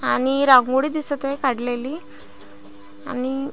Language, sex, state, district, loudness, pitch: Marathi, female, Maharashtra, Pune, -20 LUFS, 260 Hz